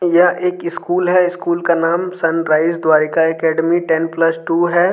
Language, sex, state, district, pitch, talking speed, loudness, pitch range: Hindi, male, Jharkhand, Deoghar, 170 Hz, 170 wpm, -16 LUFS, 165-175 Hz